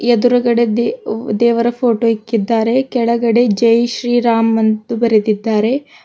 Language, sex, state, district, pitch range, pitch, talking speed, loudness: Kannada, female, Karnataka, Bidar, 225-240 Hz, 235 Hz, 110 wpm, -14 LUFS